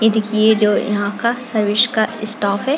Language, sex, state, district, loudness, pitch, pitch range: Hindi, female, Chhattisgarh, Bilaspur, -16 LUFS, 220 Hz, 210-230 Hz